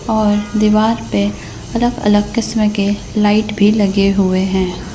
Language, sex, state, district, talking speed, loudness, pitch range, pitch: Hindi, female, Madhya Pradesh, Bhopal, 135 wpm, -15 LUFS, 195-215 Hz, 205 Hz